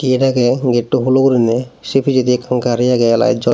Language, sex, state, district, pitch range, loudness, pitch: Chakma, male, Tripura, Dhalai, 120-130 Hz, -14 LUFS, 125 Hz